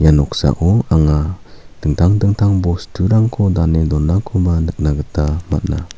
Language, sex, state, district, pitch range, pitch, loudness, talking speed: Garo, male, Meghalaya, South Garo Hills, 75-95 Hz, 85 Hz, -15 LUFS, 110 wpm